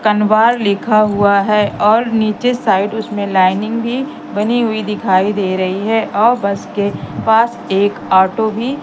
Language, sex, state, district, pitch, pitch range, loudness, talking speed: Hindi, female, Madhya Pradesh, Katni, 210 Hz, 200-225 Hz, -14 LUFS, 165 wpm